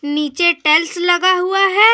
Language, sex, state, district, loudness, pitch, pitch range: Hindi, female, Jharkhand, Deoghar, -14 LUFS, 350 Hz, 310-370 Hz